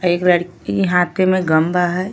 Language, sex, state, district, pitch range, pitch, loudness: Bhojpuri, female, Uttar Pradesh, Gorakhpur, 175-185 Hz, 180 Hz, -16 LUFS